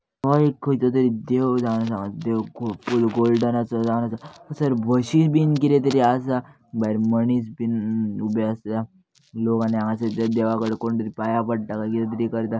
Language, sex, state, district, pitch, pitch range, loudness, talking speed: Konkani, male, Goa, North and South Goa, 115 Hz, 110-130 Hz, -22 LUFS, 150 wpm